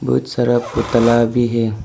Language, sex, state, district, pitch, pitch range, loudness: Hindi, male, Arunachal Pradesh, Papum Pare, 115 Hz, 110-120 Hz, -16 LUFS